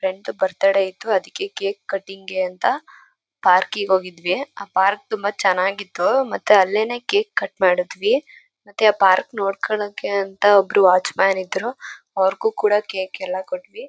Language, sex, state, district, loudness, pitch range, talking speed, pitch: Kannada, female, Karnataka, Mysore, -20 LUFS, 190-230 Hz, 145 wpm, 195 Hz